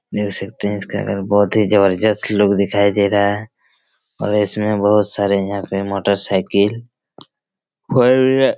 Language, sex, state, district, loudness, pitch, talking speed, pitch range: Hindi, male, Chhattisgarh, Raigarh, -17 LUFS, 100 Hz, 145 wpm, 100-105 Hz